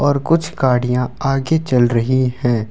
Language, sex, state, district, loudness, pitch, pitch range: Hindi, male, Delhi, New Delhi, -17 LUFS, 130 Hz, 125-145 Hz